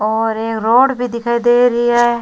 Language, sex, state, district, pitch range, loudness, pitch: Rajasthani, female, Rajasthan, Churu, 225-240 Hz, -14 LUFS, 235 Hz